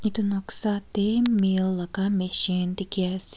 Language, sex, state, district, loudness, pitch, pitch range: Nagamese, female, Nagaland, Kohima, -25 LUFS, 195 Hz, 185-210 Hz